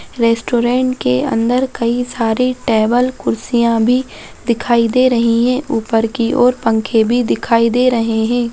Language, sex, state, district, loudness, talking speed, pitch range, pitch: Hindi, female, Bihar, Saharsa, -15 LUFS, 150 wpm, 230-250 Hz, 235 Hz